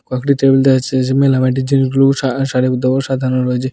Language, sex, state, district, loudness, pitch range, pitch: Bengali, male, Tripura, West Tripura, -14 LUFS, 130-135 Hz, 130 Hz